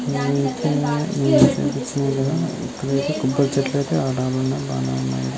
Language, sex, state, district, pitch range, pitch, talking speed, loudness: Telugu, male, Andhra Pradesh, Srikakulam, 130-140 Hz, 135 Hz, 80 wpm, -21 LUFS